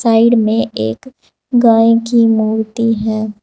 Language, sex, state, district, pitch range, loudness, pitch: Hindi, female, Uttar Pradesh, Saharanpur, 220-230 Hz, -13 LUFS, 225 Hz